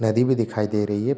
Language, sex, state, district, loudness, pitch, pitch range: Hindi, male, Bihar, Darbhanga, -22 LUFS, 110 Hz, 105-125 Hz